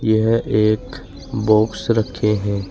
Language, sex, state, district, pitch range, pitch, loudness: Hindi, male, Uttar Pradesh, Shamli, 105-110 Hz, 110 Hz, -18 LUFS